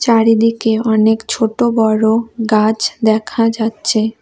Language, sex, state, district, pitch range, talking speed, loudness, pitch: Bengali, female, West Bengal, Cooch Behar, 220-230 Hz, 100 wpm, -14 LUFS, 225 Hz